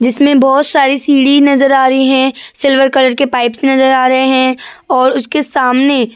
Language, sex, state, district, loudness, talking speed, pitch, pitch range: Hindi, female, Uttar Pradesh, Jyotiba Phule Nagar, -10 LUFS, 185 wpm, 265 Hz, 260-275 Hz